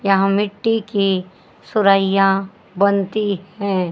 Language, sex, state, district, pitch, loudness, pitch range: Hindi, female, Haryana, Jhajjar, 200 Hz, -18 LUFS, 195-205 Hz